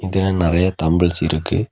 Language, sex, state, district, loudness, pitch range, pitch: Tamil, male, Tamil Nadu, Kanyakumari, -18 LUFS, 80-95 Hz, 90 Hz